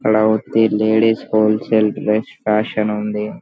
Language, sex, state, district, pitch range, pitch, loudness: Telugu, male, Andhra Pradesh, Anantapur, 105-110 Hz, 110 Hz, -17 LUFS